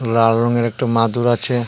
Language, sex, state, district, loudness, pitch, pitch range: Bengali, male, Tripura, West Tripura, -17 LUFS, 120 Hz, 115-120 Hz